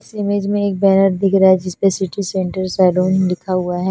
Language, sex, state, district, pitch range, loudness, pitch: Hindi, female, Punjab, Fazilka, 185-195 Hz, -16 LUFS, 190 Hz